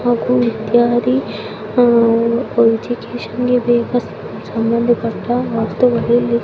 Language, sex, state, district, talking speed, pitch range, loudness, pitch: Kannada, female, Karnataka, Mysore, 55 wpm, 230-245 Hz, -16 LUFS, 235 Hz